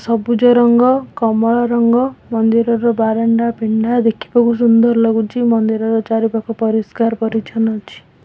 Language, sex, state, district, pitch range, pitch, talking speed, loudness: Odia, female, Odisha, Khordha, 225-235 Hz, 230 Hz, 110 wpm, -14 LUFS